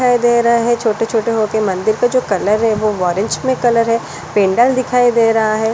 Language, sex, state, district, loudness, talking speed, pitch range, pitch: Hindi, female, Delhi, New Delhi, -14 LUFS, 230 wpm, 215-240 Hz, 225 Hz